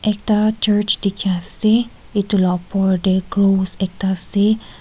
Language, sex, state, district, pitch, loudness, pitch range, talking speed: Nagamese, female, Nagaland, Kohima, 200 Hz, -18 LUFS, 190-210 Hz, 150 wpm